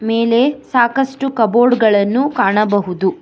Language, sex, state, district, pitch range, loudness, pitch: Kannada, female, Karnataka, Bangalore, 210-260 Hz, -14 LUFS, 230 Hz